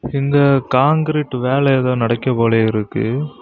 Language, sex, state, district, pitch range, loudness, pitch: Tamil, male, Tamil Nadu, Kanyakumari, 120-140 Hz, -16 LUFS, 130 Hz